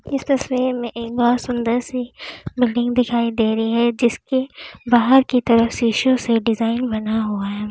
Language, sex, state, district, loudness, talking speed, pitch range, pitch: Hindi, female, Uttar Pradesh, Lalitpur, -19 LUFS, 170 wpm, 230-250 Hz, 240 Hz